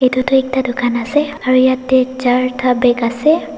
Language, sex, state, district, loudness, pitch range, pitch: Nagamese, female, Nagaland, Dimapur, -15 LUFS, 250-265 Hz, 255 Hz